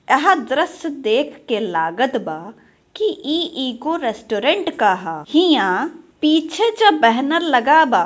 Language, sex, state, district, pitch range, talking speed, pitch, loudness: Bhojpuri, female, Bihar, Gopalganj, 230-330 Hz, 140 wpm, 300 Hz, -18 LUFS